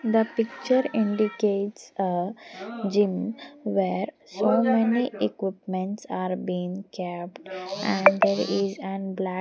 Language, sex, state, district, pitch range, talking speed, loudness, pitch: English, female, Haryana, Jhajjar, 185-220 Hz, 115 wpm, -26 LUFS, 195 Hz